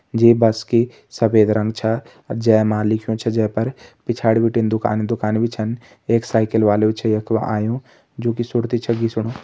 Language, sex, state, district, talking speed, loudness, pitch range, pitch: Hindi, male, Uttarakhand, Tehri Garhwal, 190 wpm, -19 LUFS, 110-115 Hz, 110 Hz